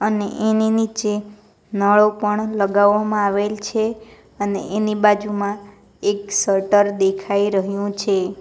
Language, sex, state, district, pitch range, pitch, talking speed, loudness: Gujarati, female, Gujarat, Valsad, 200-210 Hz, 205 Hz, 115 wpm, -19 LUFS